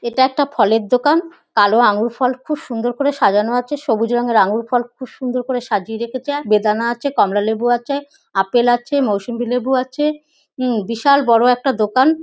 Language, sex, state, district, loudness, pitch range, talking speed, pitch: Bengali, female, West Bengal, North 24 Parganas, -17 LUFS, 230-280 Hz, 170 wpm, 245 Hz